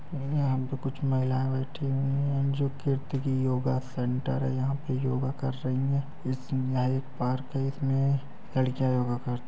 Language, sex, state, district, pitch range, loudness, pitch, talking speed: Hindi, male, Uttar Pradesh, Ghazipur, 130-135 Hz, -29 LUFS, 135 Hz, 190 wpm